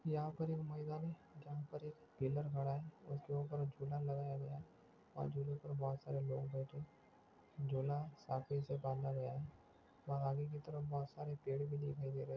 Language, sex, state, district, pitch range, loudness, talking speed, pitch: Hindi, male, Chhattisgarh, Bastar, 135-150 Hz, -44 LUFS, 195 wpm, 140 Hz